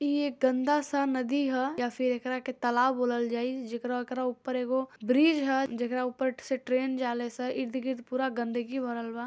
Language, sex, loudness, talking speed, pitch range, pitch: Bhojpuri, female, -30 LUFS, 180 wpm, 245-265 Hz, 255 Hz